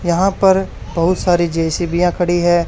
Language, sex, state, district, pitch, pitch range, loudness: Hindi, male, Haryana, Charkhi Dadri, 175 Hz, 170-180 Hz, -16 LUFS